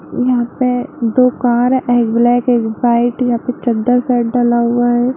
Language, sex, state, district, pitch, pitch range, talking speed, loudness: Hindi, female, Bihar, Darbhanga, 245 Hz, 240-250 Hz, 160 wpm, -14 LUFS